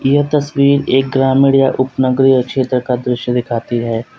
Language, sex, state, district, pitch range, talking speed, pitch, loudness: Hindi, male, Uttar Pradesh, Lalitpur, 125-135 Hz, 155 wpm, 130 Hz, -14 LUFS